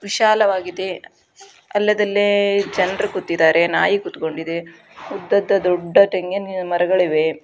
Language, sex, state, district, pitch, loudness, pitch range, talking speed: Kannada, female, Karnataka, Dharwad, 185 Hz, -18 LUFS, 170-200 Hz, 90 wpm